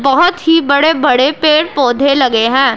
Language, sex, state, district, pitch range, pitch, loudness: Hindi, female, Punjab, Pathankot, 265-315 Hz, 280 Hz, -11 LUFS